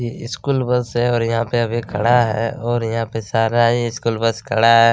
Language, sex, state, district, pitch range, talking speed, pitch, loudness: Hindi, male, Chhattisgarh, Kabirdham, 115-120 Hz, 230 wpm, 115 Hz, -18 LUFS